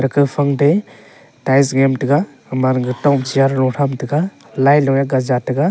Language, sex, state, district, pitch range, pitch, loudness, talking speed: Wancho, male, Arunachal Pradesh, Longding, 130-145 Hz, 135 Hz, -16 LUFS, 160 wpm